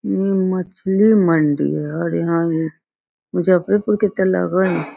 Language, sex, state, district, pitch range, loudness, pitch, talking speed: Hindi, female, Bihar, Muzaffarpur, 165-195 Hz, -18 LUFS, 185 Hz, 95 wpm